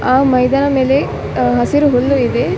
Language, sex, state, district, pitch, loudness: Kannada, female, Karnataka, Dakshina Kannada, 255 Hz, -13 LUFS